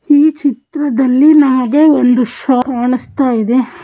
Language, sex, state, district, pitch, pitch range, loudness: Kannada, female, Karnataka, Dakshina Kannada, 265 Hz, 250-295 Hz, -12 LUFS